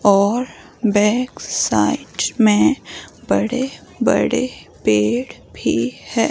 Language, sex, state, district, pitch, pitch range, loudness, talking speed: Hindi, female, Himachal Pradesh, Shimla, 230 Hz, 205-250 Hz, -18 LUFS, 75 wpm